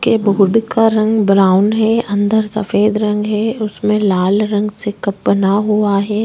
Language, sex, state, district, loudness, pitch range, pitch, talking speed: Hindi, female, Chhattisgarh, Korba, -14 LUFS, 200-215 Hz, 210 Hz, 170 wpm